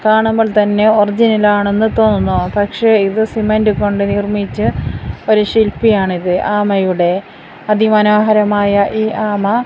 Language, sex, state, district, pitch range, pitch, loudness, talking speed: Malayalam, female, Kerala, Kasaragod, 200-220 Hz, 210 Hz, -13 LUFS, 110 wpm